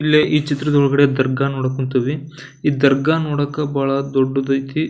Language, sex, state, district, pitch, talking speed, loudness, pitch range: Kannada, male, Karnataka, Belgaum, 140 Hz, 135 wpm, -18 LUFS, 135-150 Hz